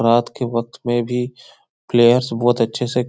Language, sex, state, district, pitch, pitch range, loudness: Hindi, male, Bihar, Supaul, 120 Hz, 115-125 Hz, -18 LUFS